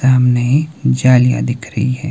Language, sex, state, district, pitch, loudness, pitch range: Hindi, male, Himachal Pradesh, Shimla, 130 Hz, -14 LUFS, 125-135 Hz